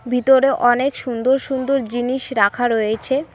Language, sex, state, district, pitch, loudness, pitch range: Bengali, female, West Bengal, Cooch Behar, 250 Hz, -18 LUFS, 240-265 Hz